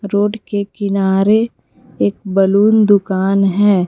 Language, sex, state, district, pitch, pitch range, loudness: Hindi, female, Jharkhand, Palamu, 200 Hz, 195-205 Hz, -14 LUFS